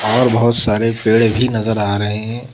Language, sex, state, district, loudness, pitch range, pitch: Hindi, female, Madhya Pradesh, Bhopal, -16 LUFS, 110-120 Hz, 115 Hz